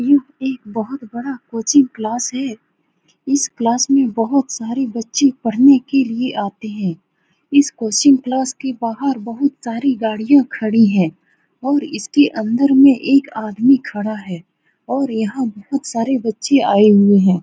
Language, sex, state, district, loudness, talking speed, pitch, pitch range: Hindi, female, Bihar, Saran, -16 LUFS, 160 wpm, 245 Hz, 220-275 Hz